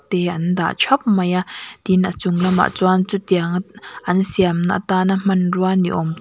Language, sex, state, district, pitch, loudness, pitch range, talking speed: Mizo, female, Mizoram, Aizawl, 185 Hz, -18 LUFS, 180-190 Hz, 195 wpm